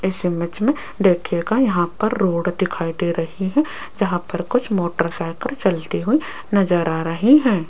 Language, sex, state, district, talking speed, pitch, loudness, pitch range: Hindi, female, Rajasthan, Jaipur, 165 wpm, 185 Hz, -20 LUFS, 170-220 Hz